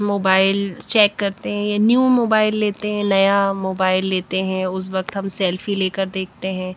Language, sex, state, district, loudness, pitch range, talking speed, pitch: Hindi, female, Bihar, West Champaran, -19 LUFS, 190-205 Hz, 175 wpm, 195 Hz